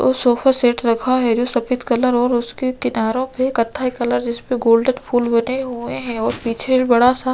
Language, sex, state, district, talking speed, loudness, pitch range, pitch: Hindi, female, Chhattisgarh, Sukma, 205 wpm, -18 LUFS, 235-255 Hz, 245 Hz